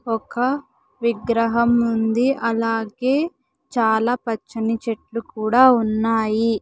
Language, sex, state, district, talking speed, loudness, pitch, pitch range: Telugu, female, Andhra Pradesh, Sri Satya Sai, 80 wpm, -20 LUFS, 230 Hz, 225-250 Hz